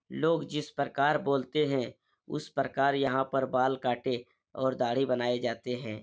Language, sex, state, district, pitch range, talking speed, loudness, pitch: Hindi, male, Bihar, Supaul, 125-140 Hz, 170 wpm, -30 LUFS, 135 Hz